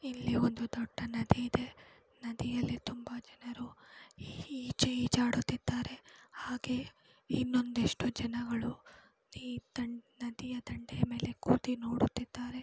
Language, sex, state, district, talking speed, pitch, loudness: Kannada, female, Karnataka, Mysore, 80 wpm, 240 Hz, -36 LUFS